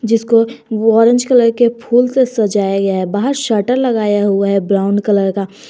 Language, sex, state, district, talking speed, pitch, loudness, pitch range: Hindi, female, Jharkhand, Garhwa, 190 wpm, 225 Hz, -13 LUFS, 200-240 Hz